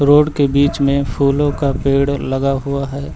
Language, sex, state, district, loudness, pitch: Hindi, male, Uttar Pradesh, Lucknow, -16 LUFS, 140 Hz